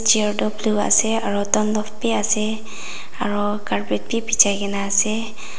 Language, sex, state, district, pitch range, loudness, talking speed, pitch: Nagamese, female, Nagaland, Dimapur, 205-220 Hz, -20 LUFS, 150 wpm, 215 Hz